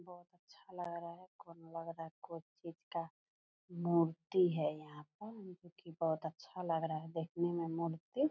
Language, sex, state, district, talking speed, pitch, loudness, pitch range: Hindi, female, Bihar, Purnia, 180 wpm, 170 Hz, -40 LUFS, 165-175 Hz